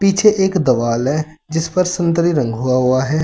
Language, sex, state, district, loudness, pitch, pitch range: Hindi, male, Uttar Pradesh, Saharanpur, -16 LUFS, 155 Hz, 130-180 Hz